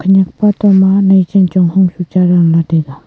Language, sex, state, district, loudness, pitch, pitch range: Wancho, female, Arunachal Pradesh, Longding, -10 LUFS, 185 Hz, 175-195 Hz